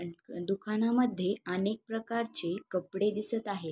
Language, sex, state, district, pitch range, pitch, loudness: Marathi, female, Maharashtra, Sindhudurg, 180-225 Hz, 200 Hz, -33 LUFS